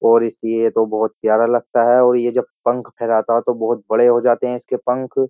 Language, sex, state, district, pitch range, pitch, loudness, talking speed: Hindi, male, Uttar Pradesh, Jyotiba Phule Nagar, 115-125 Hz, 120 Hz, -17 LUFS, 240 wpm